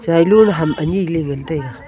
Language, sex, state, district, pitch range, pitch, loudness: Wancho, female, Arunachal Pradesh, Longding, 150-175 Hz, 165 Hz, -15 LUFS